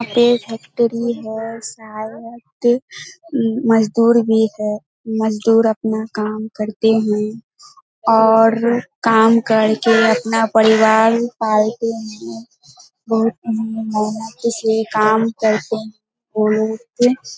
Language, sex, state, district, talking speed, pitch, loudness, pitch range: Hindi, female, Bihar, Kishanganj, 90 wpm, 225 Hz, -16 LUFS, 220-230 Hz